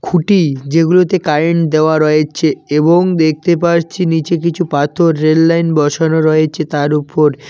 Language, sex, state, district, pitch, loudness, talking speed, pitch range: Bengali, male, West Bengal, Cooch Behar, 160 Hz, -13 LUFS, 130 wpm, 155-170 Hz